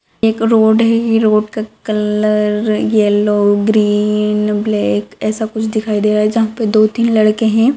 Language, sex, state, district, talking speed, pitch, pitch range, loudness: Magahi, female, Bihar, Gaya, 170 wpm, 215 Hz, 210-220 Hz, -14 LUFS